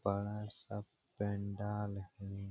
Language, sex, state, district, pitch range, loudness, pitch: Hindi, male, Bihar, Supaul, 100-105 Hz, -42 LUFS, 100 Hz